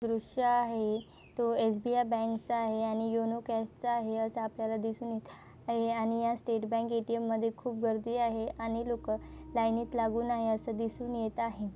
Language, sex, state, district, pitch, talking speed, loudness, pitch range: Marathi, female, Maharashtra, Nagpur, 230 Hz, 185 wpm, -33 LUFS, 225-235 Hz